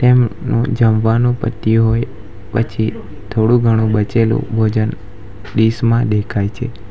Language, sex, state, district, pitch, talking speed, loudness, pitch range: Gujarati, male, Gujarat, Valsad, 110 Hz, 105 wpm, -16 LUFS, 105-115 Hz